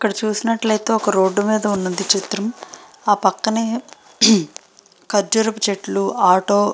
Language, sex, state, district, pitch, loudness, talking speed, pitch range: Telugu, female, Andhra Pradesh, Srikakulam, 210 Hz, -18 LUFS, 125 wpm, 195-225 Hz